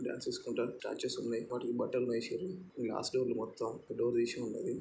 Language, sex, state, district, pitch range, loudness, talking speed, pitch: Telugu, male, Andhra Pradesh, Srikakulam, 115-125 Hz, -37 LUFS, 200 wpm, 120 Hz